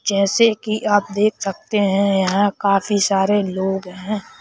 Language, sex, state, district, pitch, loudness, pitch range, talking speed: Hindi, male, Madhya Pradesh, Bhopal, 200 Hz, -18 LUFS, 195-210 Hz, 150 wpm